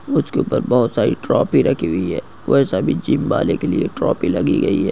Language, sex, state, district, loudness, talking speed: Hindi, male, Goa, North and South Goa, -18 LUFS, 205 wpm